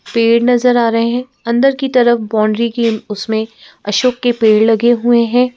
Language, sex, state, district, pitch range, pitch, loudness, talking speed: Hindi, female, Madhya Pradesh, Bhopal, 225-245 Hz, 235 Hz, -13 LUFS, 170 wpm